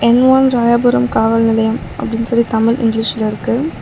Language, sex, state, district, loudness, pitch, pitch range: Tamil, female, Tamil Nadu, Chennai, -14 LUFS, 230 Hz, 225-240 Hz